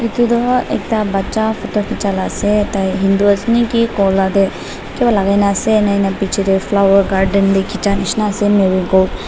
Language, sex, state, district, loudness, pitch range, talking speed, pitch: Nagamese, female, Nagaland, Dimapur, -14 LUFS, 195-220 Hz, 185 wpm, 200 Hz